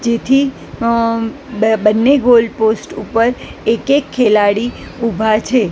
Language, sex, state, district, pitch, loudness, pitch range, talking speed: Gujarati, female, Gujarat, Gandhinagar, 230 Hz, -14 LUFS, 220-250 Hz, 115 wpm